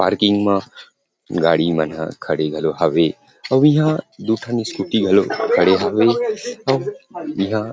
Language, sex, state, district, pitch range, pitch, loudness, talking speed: Chhattisgarhi, male, Chhattisgarh, Rajnandgaon, 95-135 Hz, 110 Hz, -18 LUFS, 145 wpm